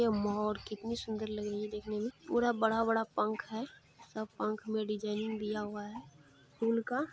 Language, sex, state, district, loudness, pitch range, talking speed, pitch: Maithili, female, Bihar, Supaul, -35 LUFS, 210-225 Hz, 185 wpm, 215 Hz